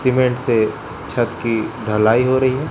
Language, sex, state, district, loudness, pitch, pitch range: Hindi, male, Chhattisgarh, Raipur, -18 LUFS, 120 Hz, 110-130 Hz